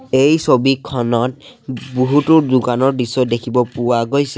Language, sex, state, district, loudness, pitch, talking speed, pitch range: Assamese, male, Assam, Sonitpur, -15 LUFS, 130 Hz, 110 wpm, 120-140 Hz